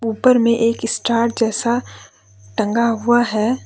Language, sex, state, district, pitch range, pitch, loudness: Hindi, female, Jharkhand, Deoghar, 215-235 Hz, 230 Hz, -17 LUFS